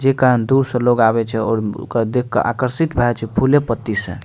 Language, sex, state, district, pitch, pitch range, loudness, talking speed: Maithili, male, Bihar, Madhepura, 120 Hz, 115-130 Hz, -17 LUFS, 240 wpm